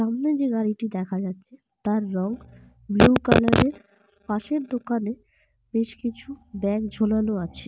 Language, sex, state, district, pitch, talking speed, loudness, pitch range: Bengali, female, Jharkhand, Sahebganj, 215 Hz, 135 wpm, -24 LUFS, 200-240 Hz